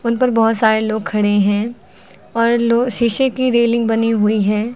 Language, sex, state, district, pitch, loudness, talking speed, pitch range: Hindi, female, Uttar Pradesh, Lucknow, 230 Hz, -16 LUFS, 175 wpm, 215-235 Hz